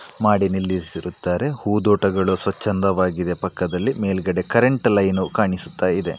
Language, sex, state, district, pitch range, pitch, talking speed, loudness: Kannada, male, Karnataka, Dakshina Kannada, 90-105 Hz, 95 Hz, 95 wpm, -20 LUFS